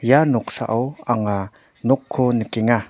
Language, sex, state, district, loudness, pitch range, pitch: Garo, male, Meghalaya, North Garo Hills, -20 LUFS, 110-130 Hz, 120 Hz